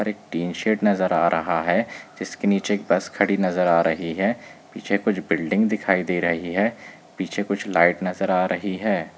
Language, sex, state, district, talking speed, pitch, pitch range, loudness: Hindi, male, Chhattisgarh, Bilaspur, 210 wpm, 95 Hz, 85-100 Hz, -22 LUFS